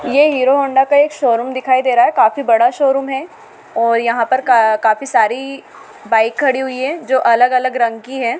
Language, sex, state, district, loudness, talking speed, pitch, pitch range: Hindi, female, Madhya Pradesh, Dhar, -14 LUFS, 215 wpm, 260 Hz, 235-275 Hz